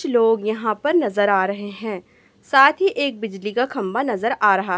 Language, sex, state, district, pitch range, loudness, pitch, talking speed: Hindi, female, Chhattisgarh, Raipur, 205-265 Hz, -20 LUFS, 220 Hz, 215 wpm